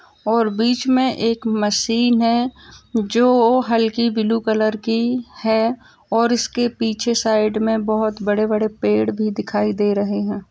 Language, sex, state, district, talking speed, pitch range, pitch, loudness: Hindi, female, Bihar, Lakhisarai, 145 wpm, 215-235 Hz, 225 Hz, -19 LUFS